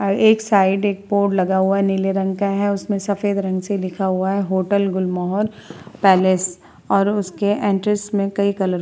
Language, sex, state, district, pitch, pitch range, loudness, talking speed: Hindi, female, Bihar, Vaishali, 195 Hz, 190-200 Hz, -19 LUFS, 195 wpm